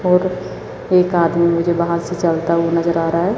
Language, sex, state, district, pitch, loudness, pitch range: Hindi, female, Chandigarh, Chandigarh, 170 Hz, -17 LUFS, 170-180 Hz